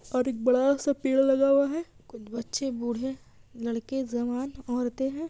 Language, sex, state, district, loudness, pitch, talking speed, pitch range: Hindi, female, Bihar, Kishanganj, -27 LUFS, 265 Hz, 160 wpm, 240-275 Hz